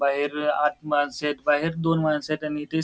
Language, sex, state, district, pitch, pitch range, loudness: Marathi, male, Maharashtra, Pune, 150 Hz, 150-155 Hz, -24 LUFS